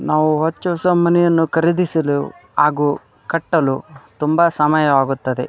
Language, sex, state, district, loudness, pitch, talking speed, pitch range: Kannada, male, Karnataka, Dharwad, -17 LUFS, 155 Hz, 100 wpm, 145-170 Hz